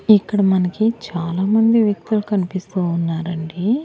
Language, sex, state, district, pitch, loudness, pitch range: Telugu, female, Andhra Pradesh, Annamaya, 195 Hz, -19 LUFS, 175-215 Hz